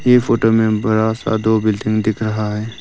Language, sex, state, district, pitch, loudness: Hindi, male, Arunachal Pradesh, Lower Dibang Valley, 110 Hz, -16 LUFS